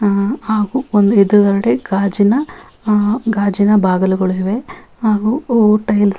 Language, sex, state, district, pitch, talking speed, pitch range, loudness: Kannada, female, Karnataka, Bellary, 210 Hz, 115 wpm, 200-225 Hz, -14 LUFS